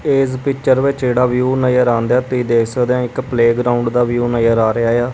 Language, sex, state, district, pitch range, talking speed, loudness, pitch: Punjabi, male, Punjab, Kapurthala, 120-130 Hz, 235 wpm, -15 LUFS, 125 Hz